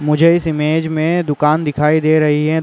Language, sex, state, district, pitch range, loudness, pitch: Hindi, male, Uttar Pradesh, Jalaun, 150-160 Hz, -14 LUFS, 155 Hz